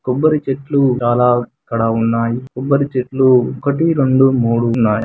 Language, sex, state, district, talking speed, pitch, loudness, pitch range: Telugu, male, Andhra Pradesh, Srikakulam, 120 wpm, 125 Hz, -15 LUFS, 120-135 Hz